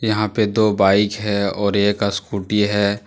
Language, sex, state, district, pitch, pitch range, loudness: Hindi, male, Jharkhand, Deoghar, 105 Hz, 100-105 Hz, -18 LUFS